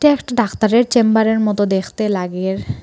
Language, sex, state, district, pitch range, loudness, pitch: Bengali, female, Assam, Hailakandi, 190-235 Hz, -16 LUFS, 215 Hz